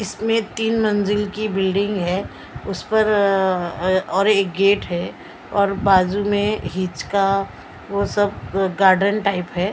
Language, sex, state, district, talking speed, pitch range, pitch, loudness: Hindi, female, Maharashtra, Mumbai Suburban, 150 wpm, 190-205 Hz, 200 Hz, -19 LUFS